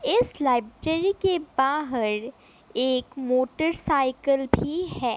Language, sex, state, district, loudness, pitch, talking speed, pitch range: Hindi, female, Assam, Kamrup Metropolitan, -25 LUFS, 275 Hz, 95 wpm, 255-320 Hz